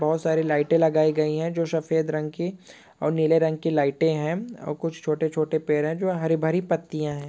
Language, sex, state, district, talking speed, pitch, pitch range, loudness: Hindi, male, West Bengal, Malda, 215 wpm, 160 Hz, 155-165 Hz, -24 LUFS